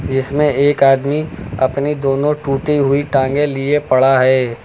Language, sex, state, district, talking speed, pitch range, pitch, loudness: Hindi, male, Uttar Pradesh, Lucknow, 140 wpm, 135-145 Hz, 140 Hz, -15 LUFS